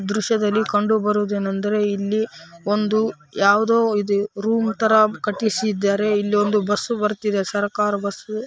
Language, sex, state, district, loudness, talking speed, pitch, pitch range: Kannada, female, Karnataka, Raichur, -20 LUFS, 120 wpm, 210 Hz, 205-215 Hz